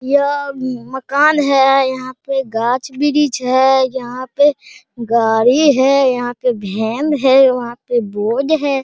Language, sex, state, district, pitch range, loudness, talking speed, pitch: Hindi, male, Bihar, Araria, 245-280 Hz, -15 LUFS, 130 wpm, 260 Hz